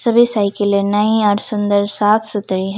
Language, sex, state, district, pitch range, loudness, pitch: Hindi, female, Jharkhand, Ranchi, 200-220 Hz, -15 LUFS, 205 Hz